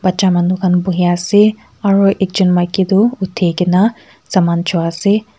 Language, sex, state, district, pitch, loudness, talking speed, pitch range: Nagamese, female, Nagaland, Kohima, 185 Hz, -14 LUFS, 135 wpm, 175-200 Hz